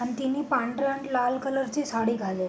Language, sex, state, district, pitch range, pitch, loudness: Marathi, female, Maharashtra, Sindhudurg, 235-270 Hz, 260 Hz, -27 LUFS